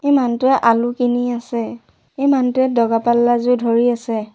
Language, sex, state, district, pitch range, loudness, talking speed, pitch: Assamese, female, Assam, Sonitpur, 230-250 Hz, -17 LUFS, 165 wpm, 240 Hz